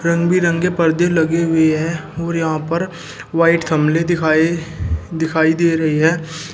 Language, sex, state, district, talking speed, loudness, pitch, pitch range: Hindi, male, Uttar Pradesh, Shamli, 130 wpm, -17 LUFS, 165 Hz, 160-170 Hz